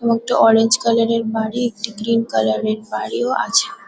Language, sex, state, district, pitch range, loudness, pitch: Bengali, female, West Bengal, Kolkata, 220-230 Hz, -18 LUFS, 230 Hz